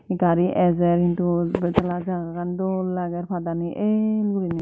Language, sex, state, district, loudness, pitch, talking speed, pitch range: Chakma, female, Tripura, Dhalai, -23 LUFS, 175 Hz, 145 wpm, 175-185 Hz